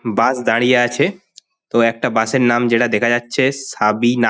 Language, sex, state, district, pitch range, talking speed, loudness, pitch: Bengali, male, West Bengal, Paschim Medinipur, 115-130 Hz, 180 wpm, -16 LUFS, 120 Hz